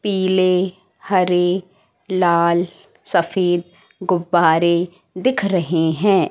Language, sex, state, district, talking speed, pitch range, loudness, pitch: Hindi, female, Madhya Pradesh, Katni, 75 wpm, 170-185 Hz, -18 LUFS, 180 Hz